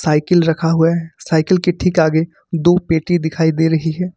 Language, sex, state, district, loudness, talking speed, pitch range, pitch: Hindi, male, Jharkhand, Ranchi, -16 LUFS, 200 wpm, 160-175 Hz, 165 Hz